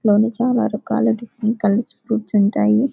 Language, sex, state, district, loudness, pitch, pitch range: Telugu, female, Telangana, Karimnagar, -19 LUFS, 220 Hz, 205-235 Hz